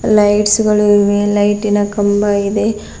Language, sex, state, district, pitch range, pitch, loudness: Kannada, female, Karnataka, Bidar, 205-210 Hz, 205 Hz, -13 LUFS